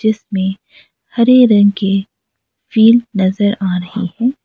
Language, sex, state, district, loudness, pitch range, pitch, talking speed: Hindi, female, Arunachal Pradesh, Lower Dibang Valley, -13 LUFS, 195-235 Hz, 205 Hz, 120 wpm